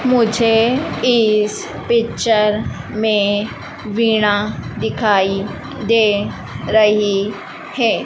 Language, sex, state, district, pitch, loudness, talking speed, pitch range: Hindi, female, Madhya Pradesh, Dhar, 215 Hz, -16 LUFS, 65 wpm, 205-230 Hz